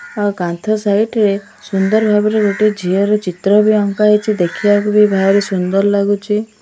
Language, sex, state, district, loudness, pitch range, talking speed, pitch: Odia, female, Odisha, Malkangiri, -14 LUFS, 195-210 Hz, 155 wpm, 205 Hz